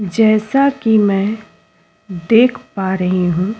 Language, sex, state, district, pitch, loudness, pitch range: Hindi, female, Uttar Pradesh, Jyotiba Phule Nagar, 215 Hz, -15 LUFS, 190-225 Hz